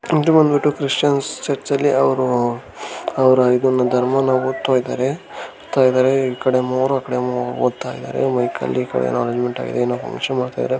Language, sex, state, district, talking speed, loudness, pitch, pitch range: Kannada, male, Karnataka, Gulbarga, 140 wpm, -18 LUFS, 130 Hz, 125-135 Hz